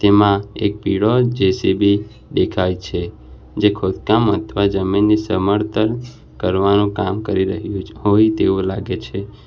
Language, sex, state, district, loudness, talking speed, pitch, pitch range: Gujarati, male, Gujarat, Valsad, -18 LUFS, 125 wpm, 100 Hz, 95-105 Hz